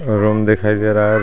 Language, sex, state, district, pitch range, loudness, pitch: Hindi, male, Jharkhand, Garhwa, 105-110 Hz, -15 LUFS, 105 Hz